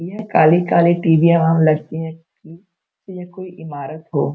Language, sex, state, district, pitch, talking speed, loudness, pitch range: Hindi, female, Uttar Pradesh, Gorakhpur, 165 Hz, 150 wpm, -15 LUFS, 160-175 Hz